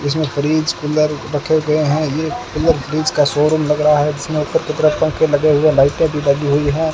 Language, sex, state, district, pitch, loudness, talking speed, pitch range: Hindi, male, Rajasthan, Bikaner, 150 Hz, -16 LUFS, 225 wpm, 145-155 Hz